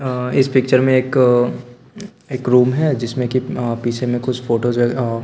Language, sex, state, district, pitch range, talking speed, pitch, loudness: Hindi, male, Bihar, Patna, 120-130 Hz, 195 wpm, 125 Hz, -17 LUFS